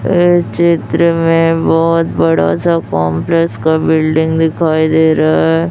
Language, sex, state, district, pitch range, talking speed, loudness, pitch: Hindi, male, Chhattisgarh, Raipur, 110-165 Hz, 135 wpm, -12 LUFS, 160 Hz